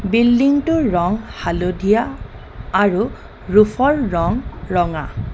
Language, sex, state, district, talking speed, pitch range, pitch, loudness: Assamese, female, Assam, Kamrup Metropolitan, 100 wpm, 175-245 Hz, 210 Hz, -17 LUFS